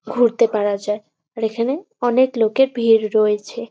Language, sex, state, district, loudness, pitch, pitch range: Bengali, female, West Bengal, Purulia, -18 LUFS, 225 Hz, 210-240 Hz